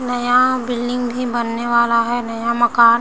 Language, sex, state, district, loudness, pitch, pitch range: Hindi, female, Uttar Pradesh, Gorakhpur, -17 LUFS, 240 Hz, 235-245 Hz